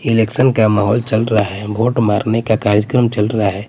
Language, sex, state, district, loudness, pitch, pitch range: Hindi, male, Bihar, Patna, -15 LUFS, 110 Hz, 105-115 Hz